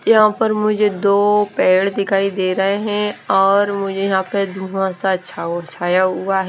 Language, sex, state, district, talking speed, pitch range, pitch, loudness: Hindi, female, Himachal Pradesh, Shimla, 165 wpm, 190-205 Hz, 195 Hz, -17 LUFS